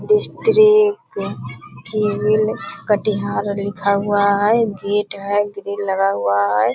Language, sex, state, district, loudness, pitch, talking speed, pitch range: Hindi, female, Bihar, Purnia, -18 LUFS, 205 Hz, 90 wpm, 200-215 Hz